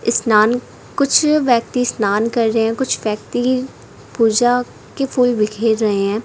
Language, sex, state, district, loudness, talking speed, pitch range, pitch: Hindi, female, Uttar Pradesh, Saharanpur, -16 LUFS, 145 wpm, 220-250 Hz, 235 Hz